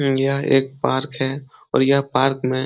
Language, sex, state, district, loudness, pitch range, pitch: Hindi, male, Uttar Pradesh, Etah, -20 LUFS, 130-140 Hz, 135 Hz